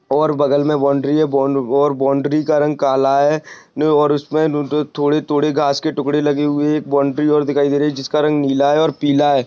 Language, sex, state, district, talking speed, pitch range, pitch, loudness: Hindi, male, Maharashtra, Sindhudurg, 220 wpm, 140-150 Hz, 145 Hz, -16 LUFS